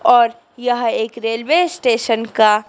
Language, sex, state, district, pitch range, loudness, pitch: Hindi, female, Madhya Pradesh, Dhar, 225-245 Hz, -17 LUFS, 235 Hz